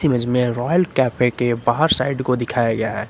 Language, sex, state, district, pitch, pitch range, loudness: Hindi, male, Uttar Pradesh, Lucknow, 125 Hz, 120-135 Hz, -19 LUFS